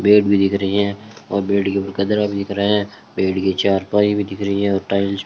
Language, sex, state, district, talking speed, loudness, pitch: Hindi, male, Rajasthan, Bikaner, 275 wpm, -18 LUFS, 100 Hz